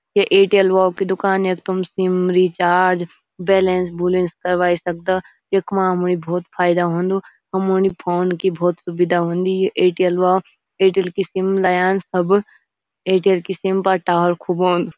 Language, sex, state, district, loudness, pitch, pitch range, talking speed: Garhwali, female, Uttarakhand, Uttarkashi, -18 LUFS, 185 Hz, 180-190 Hz, 155 wpm